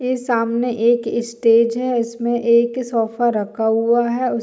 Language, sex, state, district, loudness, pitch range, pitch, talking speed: Hindi, female, Bihar, Saharsa, -18 LUFS, 230-240 Hz, 235 Hz, 175 wpm